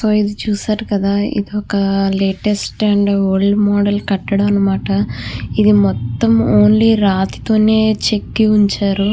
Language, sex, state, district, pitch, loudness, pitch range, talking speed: Telugu, female, Andhra Pradesh, Krishna, 200 Hz, -15 LUFS, 190-210 Hz, 120 wpm